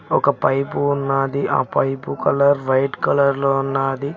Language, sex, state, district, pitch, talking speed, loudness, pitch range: Telugu, male, Telangana, Mahabubabad, 135 Hz, 130 wpm, -19 LUFS, 135-140 Hz